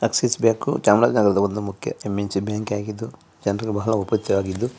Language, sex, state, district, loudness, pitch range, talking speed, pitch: Kannada, male, Karnataka, Chamarajanagar, -22 LUFS, 100-110 Hz, 35 wpm, 105 Hz